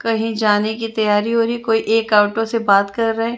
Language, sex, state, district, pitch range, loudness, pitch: Hindi, female, Chandigarh, Chandigarh, 210-225 Hz, -17 LUFS, 225 Hz